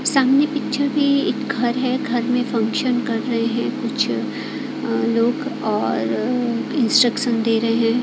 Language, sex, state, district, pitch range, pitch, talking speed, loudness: Hindi, female, Odisha, Khordha, 230-270 Hz, 245 Hz, 140 wpm, -20 LUFS